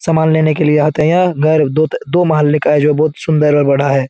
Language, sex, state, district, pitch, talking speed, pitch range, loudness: Hindi, male, Bihar, Jahanabad, 155 Hz, 280 wpm, 150-160 Hz, -12 LUFS